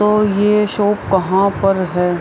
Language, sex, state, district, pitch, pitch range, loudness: Hindi, female, Bihar, Araria, 200 Hz, 185-210 Hz, -15 LUFS